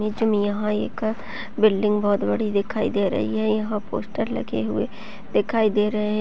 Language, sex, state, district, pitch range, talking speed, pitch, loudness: Hindi, female, Chhattisgarh, Raigarh, 205-220 Hz, 195 wpm, 210 Hz, -23 LUFS